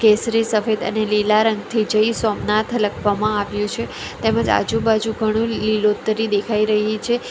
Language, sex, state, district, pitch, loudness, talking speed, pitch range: Gujarati, female, Gujarat, Valsad, 215 Hz, -19 LUFS, 140 wpm, 210-225 Hz